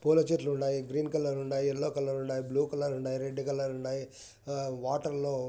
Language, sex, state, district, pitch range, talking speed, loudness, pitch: Telugu, male, Andhra Pradesh, Anantapur, 135-145 Hz, 140 wpm, -32 LUFS, 140 Hz